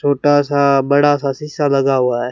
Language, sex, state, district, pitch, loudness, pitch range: Hindi, male, Rajasthan, Bikaner, 140 Hz, -15 LUFS, 135-145 Hz